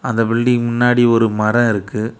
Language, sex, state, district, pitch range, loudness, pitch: Tamil, male, Tamil Nadu, Kanyakumari, 110-120 Hz, -15 LUFS, 115 Hz